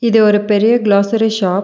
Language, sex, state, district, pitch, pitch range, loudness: Tamil, female, Tamil Nadu, Nilgiris, 210 Hz, 205-225 Hz, -13 LUFS